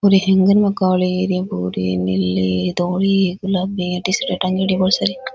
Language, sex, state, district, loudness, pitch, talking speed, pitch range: Rajasthani, female, Rajasthan, Nagaur, -18 LUFS, 185 Hz, 155 wpm, 180-195 Hz